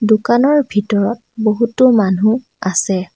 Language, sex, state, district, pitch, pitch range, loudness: Assamese, female, Assam, Sonitpur, 215 Hz, 200-235 Hz, -15 LUFS